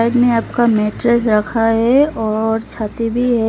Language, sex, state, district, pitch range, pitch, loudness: Hindi, female, Arunachal Pradesh, Lower Dibang Valley, 220-240 Hz, 230 Hz, -15 LUFS